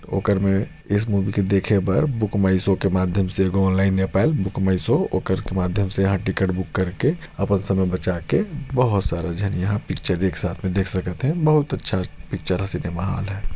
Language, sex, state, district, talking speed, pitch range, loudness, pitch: Chhattisgarhi, male, Chhattisgarh, Sarguja, 220 wpm, 95-100 Hz, -22 LUFS, 95 Hz